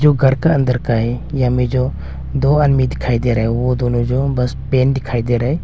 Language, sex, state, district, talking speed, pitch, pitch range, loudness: Hindi, male, Arunachal Pradesh, Longding, 255 wpm, 125 Hz, 120-135 Hz, -16 LUFS